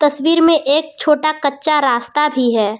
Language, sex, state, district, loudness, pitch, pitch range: Hindi, female, Jharkhand, Palamu, -15 LUFS, 295 Hz, 275-310 Hz